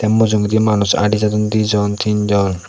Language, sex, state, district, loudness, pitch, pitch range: Chakma, male, Tripura, Unakoti, -15 LUFS, 105 Hz, 105-110 Hz